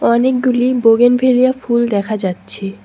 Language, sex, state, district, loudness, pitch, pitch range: Bengali, female, West Bengal, Cooch Behar, -14 LUFS, 240 Hz, 215-255 Hz